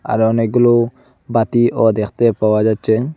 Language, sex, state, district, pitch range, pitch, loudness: Bengali, male, Assam, Hailakandi, 110-120 Hz, 115 Hz, -15 LUFS